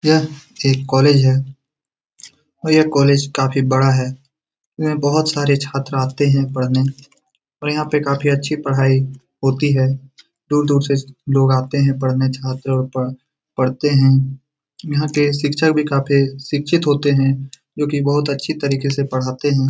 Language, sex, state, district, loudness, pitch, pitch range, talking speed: Hindi, male, Bihar, Jamui, -17 LUFS, 140 Hz, 135-145 Hz, 170 wpm